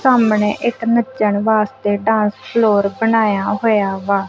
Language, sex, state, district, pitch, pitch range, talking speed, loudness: Punjabi, female, Punjab, Kapurthala, 215 Hz, 205-230 Hz, 125 wpm, -16 LUFS